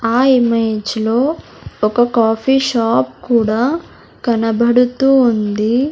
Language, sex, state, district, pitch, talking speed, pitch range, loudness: Telugu, male, Andhra Pradesh, Sri Satya Sai, 235 Hz, 90 wpm, 220-255 Hz, -15 LUFS